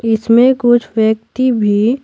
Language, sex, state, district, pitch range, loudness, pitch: Hindi, female, Bihar, Patna, 220-245 Hz, -13 LUFS, 230 Hz